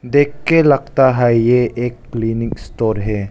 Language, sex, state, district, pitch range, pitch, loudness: Hindi, male, Arunachal Pradesh, Lower Dibang Valley, 115-140 Hz, 120 Hz, -15 LUFS